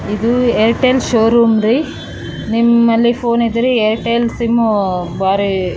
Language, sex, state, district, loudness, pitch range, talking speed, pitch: Kannada, female, Karnataka, Raichur, -14 LUFS, 215-235 Hz, 60 wpm, 230 Hz